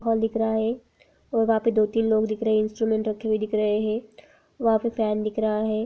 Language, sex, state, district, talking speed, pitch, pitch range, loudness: Hindi, female, West Bengal, Purulia, 245 wpm, 220 Hz, 215-225 Hz, -24 LUFS